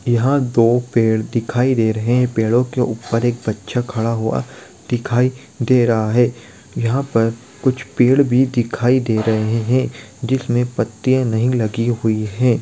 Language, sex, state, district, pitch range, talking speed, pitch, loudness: Hindi, male, Bihar, Sitamarhi, 115-125 Hz, 150 wpm, 120 Hz, -18 LUFS